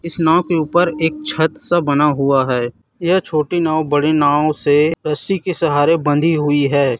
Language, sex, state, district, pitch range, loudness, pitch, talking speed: Hindi, male, Chhattisgarh, Raipur, 145-165 Hz, -16 LUFS, 155 Hz, 190 wpm